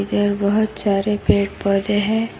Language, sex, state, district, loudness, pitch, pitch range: Hindi, female, Karnataka, Koppal, -19 LUFS, 205 Hz, 200-210 Hz